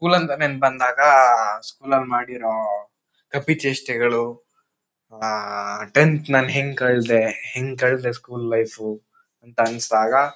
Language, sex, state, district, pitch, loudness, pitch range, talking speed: Kannada, male, Karnataka, Shimoga, 125 Hz, -20 LUFS, 115-140 Hz, 95 wpm